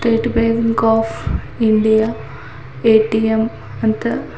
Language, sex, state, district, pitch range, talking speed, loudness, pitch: Kannada, female, Karnataka, Bidar, 220-230 Hz, 95 wpm, -16 LUFS, 225 Hz